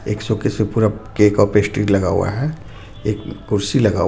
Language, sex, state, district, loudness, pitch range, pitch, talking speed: Hindi, male, Jharkhand, Ranchi, -18 LUFS, 100-110 Hz, 105 Hz, 205 wpm